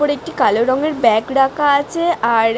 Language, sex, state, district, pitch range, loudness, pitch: Bengali, female, West Bengal, Dakshin Dinajpur, 230-295 Hz, -16 LUFS, 270 Hz